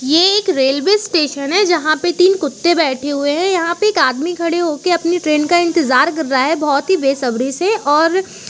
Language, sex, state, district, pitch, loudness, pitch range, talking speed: Hindi, female, Uttar Pradesh, Jalaun, 330 Hz, -15 LUFS, 285-360 Hz, 220 wpm